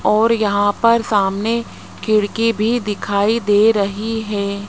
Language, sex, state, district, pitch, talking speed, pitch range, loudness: Hindi, male, Rajasthan, Jaipur, 215 Hz, 130 wpm, 205-225 Hz, -17 LUFS